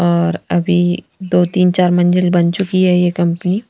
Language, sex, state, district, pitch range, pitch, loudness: Hindi, female, Punjab, Fazilka, 175-180 Hz, 180 Hz, -14 LUFS